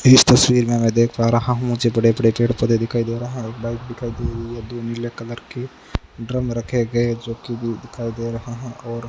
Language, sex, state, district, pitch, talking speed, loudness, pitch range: Hindi, male, Rajasthan, Bikaner, 120 Hz, 250 wpm, -20 LUFS, 115-120 Hz